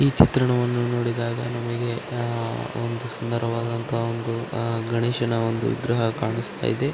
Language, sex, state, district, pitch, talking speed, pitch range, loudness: Kannada, male, Karnataka, Raichur, 115 Hz, 95 wpm, 115-120 Hz, -25 LUFS